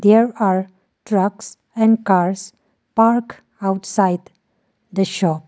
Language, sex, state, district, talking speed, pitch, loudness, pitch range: English, female, Arunachal Pradesh, Lower Dibang Valley, 100 wpm, 195 Hz, -18 LUFS, 190-220 Hz